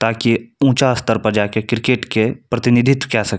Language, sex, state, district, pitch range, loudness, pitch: Maithili, male, Bihar, Saharsa, 110-125 Hz, -16 LUFS, 115 Hz